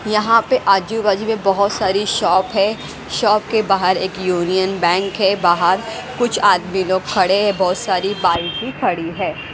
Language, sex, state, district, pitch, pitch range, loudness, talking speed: Hindi, female, Haryana, Rohtak, 195 Hz, 185-210 Hz, -17 LUFS, 170 wpm